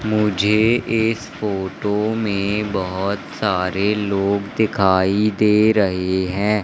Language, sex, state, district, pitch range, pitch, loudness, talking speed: Hindi, male, Madhya Pradesh, Katni, 95-105 Hz, 105 Hz, -19 LUFS, 100 wpm